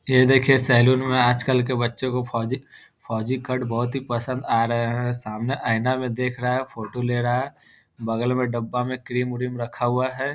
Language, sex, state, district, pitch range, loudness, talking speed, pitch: Hindi, male, Bihar, Muzaffarpur, 120-130 Hz, -23 LUFS, 215 wpm, 125 Hz